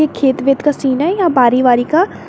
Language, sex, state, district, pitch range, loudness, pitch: Hindi, female, Jharkhand, Garhwa, 260-310 Hz, -13 LUFS, 275 Hz